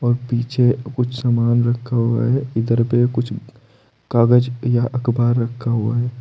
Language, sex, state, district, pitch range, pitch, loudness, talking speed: Hindi, male, Uttar Pradesh, Saharanpur, 115-125 Hz, 120 Hz, -18 LUFS, 145 wpm